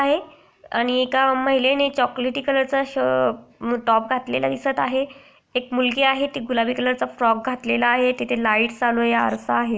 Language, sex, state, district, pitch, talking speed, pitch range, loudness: Marathi, female, Maharashtra, Aurangabad, 250 Hz, 170 wpm, 235-270 Hz, -21 LUFS